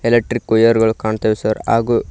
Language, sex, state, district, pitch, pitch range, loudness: Kannada, male, Karnataka, Koppal, 110 Hz, 110-115 Hz, -16 LUFS